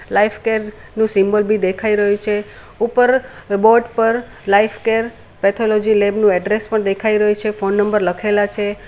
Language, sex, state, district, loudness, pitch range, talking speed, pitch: Gujarati, female, Gujarat, Valsad, -16 LUFS, 205-220 Hz, 155 wpm, 210 Hz